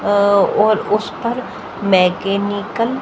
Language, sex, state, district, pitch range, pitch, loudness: Hindi, female, Haryana, Jhajjar, 200-220 Hz, 205 Hz, -16 LUFS